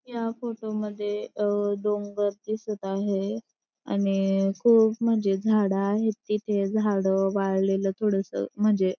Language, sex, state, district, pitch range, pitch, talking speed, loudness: Marathi, female, Maharashtra, Dhule, 195-215 Hz, 205 Hz, 120 wpm, -26 LUFS